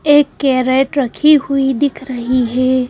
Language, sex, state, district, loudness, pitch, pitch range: Hindi, female, Madhya Pradesh, Bhopal, -14 LUFS, 265 Hz, 255-285 Hz